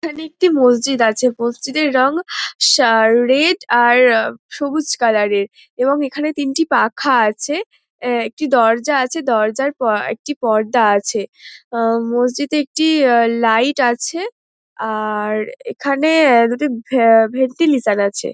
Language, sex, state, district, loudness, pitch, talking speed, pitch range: Bengali, female, West Bengal, Dakshin Dinajpur, -15 LUFS, 250 Hz, 125 wpm, 225-295 Hz